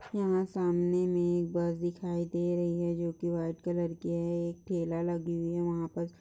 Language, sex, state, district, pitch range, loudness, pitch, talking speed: Hindi, female, Chhattisgarh, Balrampur, 170-175 Hz, -32 LUFS, 175 Hz, 220 wpm